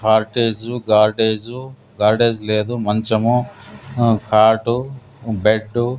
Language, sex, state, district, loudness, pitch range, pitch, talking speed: Telugu, male, Andhra Pradesh, Sri Satya Sai, -17 LUFS, 110-120 Hz, 115 Hz, 90 wpm